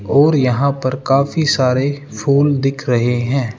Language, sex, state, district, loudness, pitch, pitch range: Hindi, male, Rajasthan, Jaipur, -16 LUFS, 135 Hz, 125-140 Hz